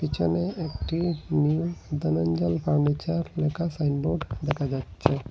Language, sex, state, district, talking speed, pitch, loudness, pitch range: Bengali, male, Assam, Hailakandi, 100 wpm, 150 Hz, -27 LUFS, 130-165 Hz